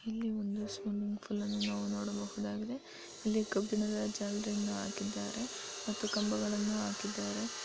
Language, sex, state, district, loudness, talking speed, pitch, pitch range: Kannada, female, Karnataka, Raichur, -37 LUFS, 100 wpm, 210 Hz, 205-215 Hz